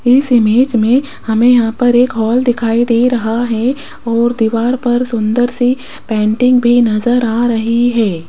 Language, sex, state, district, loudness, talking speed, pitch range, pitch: Hindi, female, Rajasthan, Jaipur, -13 LUFS, 165 wpm, 225-245 Hz, 240 Hz